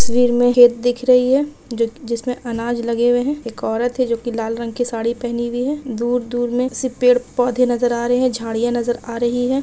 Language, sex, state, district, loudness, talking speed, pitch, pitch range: Hindi, female, Bihar, East Champaran, -18 LUFS, 230 wpm, 245 Hz, 235-250 Hz